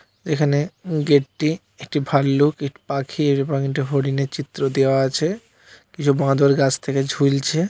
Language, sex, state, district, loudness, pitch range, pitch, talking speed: Bengali, male, West Bengal, Purulia, -20 LUFS, 135-150 Hz, 140 Hz, 135 wpm